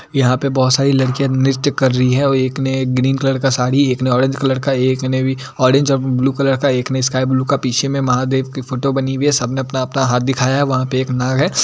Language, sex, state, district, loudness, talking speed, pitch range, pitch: Hindi, male, Bihar, Purnia, -16 LUFS, 270 wpm, 130-135 Hz, 130 Hz